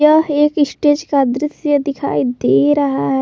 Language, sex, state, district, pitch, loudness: Hindi, female, Jharkhand, Palamu, 285 Hz, -15 LUFS